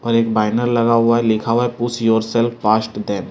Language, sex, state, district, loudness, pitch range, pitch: Hindi, male, Delhi, New Delhi, -17 LUFS, 110-120 Hz, 115 Hz